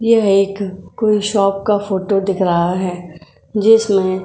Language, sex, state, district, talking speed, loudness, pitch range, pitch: Hindi, female, Goa, North and South Goa, 155 wpm, -16 LUFS, 185-210 Hz, 195 Hz